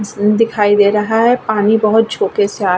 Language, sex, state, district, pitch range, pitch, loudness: Hindi, female, Bihar, Vaishali, 205-220 Hz, 210 Hz, -13 LUFS